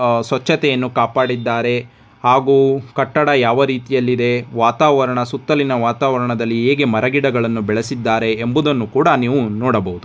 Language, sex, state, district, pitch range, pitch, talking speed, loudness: Kannada, male, Karnataka, Dharwad, 115-135 Hz, 125 Hz, 110 wpm, -16 LUFS